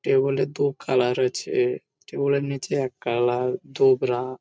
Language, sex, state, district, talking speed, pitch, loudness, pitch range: Bengali, male, West Bengal, Jhargram, 165 wpm, 135 Hz, -24 LUFS, 125-140 Hz